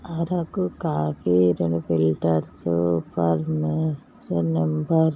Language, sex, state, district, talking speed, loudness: Telugu, female, Andhra Pradesh, Guntur, 80 wpm, -23 LUFS